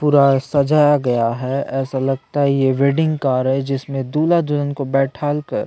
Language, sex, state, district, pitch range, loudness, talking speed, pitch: Hindi, male, Chhattisgarh, Sukma, 135-145 Hz, -18 LUFS, 190 wpm, 140 Hz